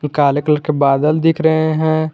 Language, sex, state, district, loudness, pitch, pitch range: Hindi, male, Jharkhand, Garhwa, -15 LUFS, 155 Hz, 150-155 Hz